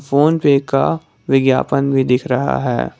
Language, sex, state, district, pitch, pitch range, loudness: Hindi, male, Jharkhand, Garhwa, 140 Hz, 130-150 Hz, -16 LUFS